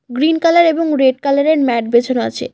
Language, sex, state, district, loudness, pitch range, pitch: Bengali, female, West Bengal, Cooch Behar, -14 LUFS, 255-315 Hz, 275 Hz